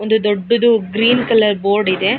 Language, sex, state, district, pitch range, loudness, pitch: Kannada, male, Karnataka, Mysore, 200-230 Hz, -14 LUFS, 215 Hz